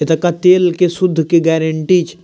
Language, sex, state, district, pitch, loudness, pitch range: Maithili, male, Bihar, Madhepura, 170 Hz, -13 LUFS, 160-180 Hz